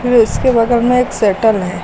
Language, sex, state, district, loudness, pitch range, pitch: Hindi, female, Uttar Pradesh, Lucknow, -13 LUFS, 205-245 Hz, 230 Hz